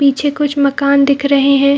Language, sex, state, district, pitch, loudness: Hindi, female, Chhattisgarh, Bilaspur, 280 Hz, -13 LUFS